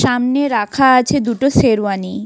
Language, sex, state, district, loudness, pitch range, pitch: Bengali, female, West Bengal, Alipurduar, -14 LUFS, 220-270 Hz, 245 Hz